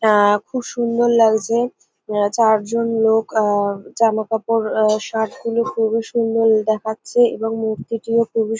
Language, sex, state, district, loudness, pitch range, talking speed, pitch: Bengali, female, West Bengal, North 24 Parganas, -18 LUFS, 220-230 Hz, 125 wpm, 225 Hz